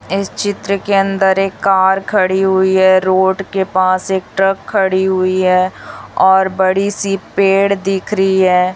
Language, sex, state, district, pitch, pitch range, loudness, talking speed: Hindi, female, Chhattisgarh, Raipur, 190 Hz, 190-195 Hz, -14 LUFS, 165 wpm